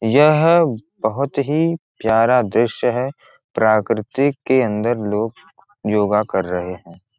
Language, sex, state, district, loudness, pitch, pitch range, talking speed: Hindi, male, Bihar, Gopalganj, -18 LUFS, 115 Hz, 105-140 Hz, 115 wpm